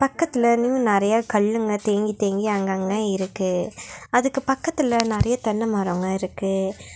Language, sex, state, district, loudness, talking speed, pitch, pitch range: Tamil, female, Tamil Nadu, Nilgiris, -22 LUFS, 120 wpm, 215 Hz, 195-240 Hz